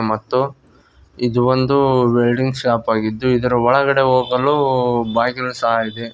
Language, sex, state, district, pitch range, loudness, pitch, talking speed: Kannada, male, Karnataka, Koppal, 115-130 Hz, -17 LUFS, 125 Hz, 105 wpm